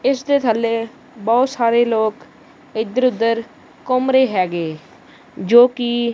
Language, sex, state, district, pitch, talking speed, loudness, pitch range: Punjabi, female, Punjab, Kapurthala, 235 Hz, 125 wpm, -17 LUFS, 225-255 Hz